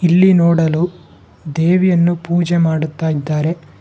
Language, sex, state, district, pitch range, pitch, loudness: Kannada, male, Karnataka, Bangalore, 160-175 Hz, 170 Hz, -15 LUFS